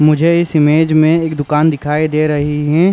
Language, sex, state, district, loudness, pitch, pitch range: Hindi, male, Uttar Pradesh, Jalaun, -13 LUFS, 155 Hz, 150-160 Hz